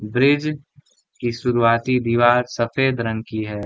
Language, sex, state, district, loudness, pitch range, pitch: Hindi, male, Bihar, Gaya, -20 LUFS, 115-135 Hz, 120 Hz